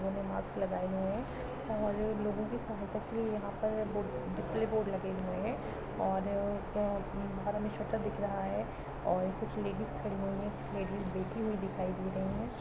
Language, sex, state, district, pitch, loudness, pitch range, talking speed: Hindi, female, Chhattisgarh, Raigarh, 200 Hz, -36 LUFS, 190-215 Hz, 180 wpm